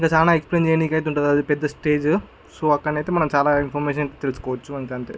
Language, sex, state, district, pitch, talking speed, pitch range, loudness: Telugu, male, Andhra Pradesh, Chittoor, 150 Hz, 175 wpm, 145-155 Hz, -21 LUFS